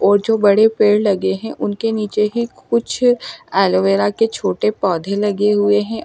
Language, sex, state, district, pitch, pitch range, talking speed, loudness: Hindi, female, Delhi, New Delhi, 210 Hz, 200-225 Hz, 170 wpm, -16 LUFS